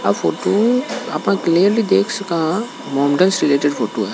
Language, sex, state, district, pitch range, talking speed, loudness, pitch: Hindi, male, Rajasthan, Nagaur, 140-200 Hz, 160 wpm, -17 LUFS, 175 Hz